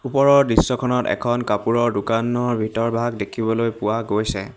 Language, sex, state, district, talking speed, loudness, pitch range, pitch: Assamese, male, Assam, Hailakandi, 120 wpm, -20 LUFS, 110-125 Hz, 115 Hz